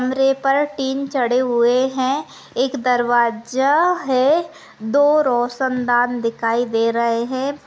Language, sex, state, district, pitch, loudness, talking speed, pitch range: Hindi, female, Maharashtra, Sindhudurg, 255 Hz, -18 LUFS, 115 wpm, 240-275 Hz